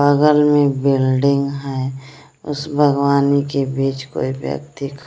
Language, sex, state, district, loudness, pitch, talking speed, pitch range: Hindi, female, Bihar, Kaimur, -17 LUFS, 140 Hz, 120 wpm, 135-145 Hz